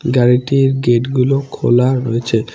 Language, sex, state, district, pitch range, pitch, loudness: Bengali, male, West Bengal, Cooch Behar, 120-135 Hz, 125 Hz, -14 LUFS